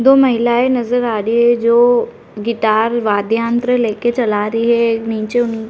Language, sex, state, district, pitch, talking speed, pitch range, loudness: Hindi, female, Uttar Pradesh, Varanasi, 235 Hz, 170 wpm, 225-240 Hz, -15 LUFS